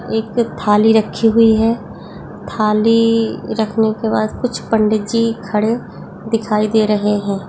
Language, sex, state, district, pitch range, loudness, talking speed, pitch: Hindi, female, Bihar, Darbhanga, 210-225 Hz, -16 LUFS, 130 wpm, 220 Hz